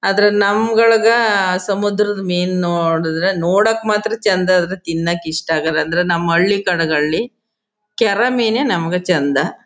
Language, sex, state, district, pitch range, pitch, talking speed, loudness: Kannada, female, Karnataka, Chamarajanagar, 170-215 Hz, 190 Hz, 130 wpm, -16 LUFS